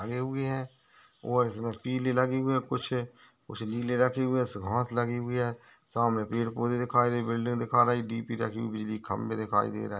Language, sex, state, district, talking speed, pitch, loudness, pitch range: Hindi, male, Maharashtra, Aurangabad, 185 wpm, 120 Hz, -30 LUFS, 115-125 Hz